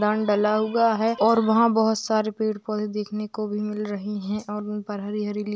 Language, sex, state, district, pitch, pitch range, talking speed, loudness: Hindi, female, Bihar, Saharsa, 210 Hz, 210-220 Hz, 205 wpm, -24 LUFS